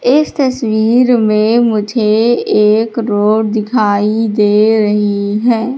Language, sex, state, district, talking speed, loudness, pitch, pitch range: Hindi, female, Madhya Pradesh, Katni, 105 wpm, -12 LUFS, 220 Hz, 210-235 Hz